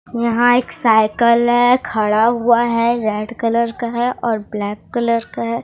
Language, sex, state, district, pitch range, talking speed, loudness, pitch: Hindi, female, Odisha, Sambalpur, 225-240 Hz, 170 wpm, -16 LUFS, 235 Hz